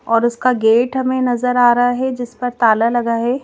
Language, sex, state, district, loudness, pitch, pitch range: Hindi, female, Madhya Pradesh, Bhopal, -16 LUFS, 245 Hz, 235-250 Hz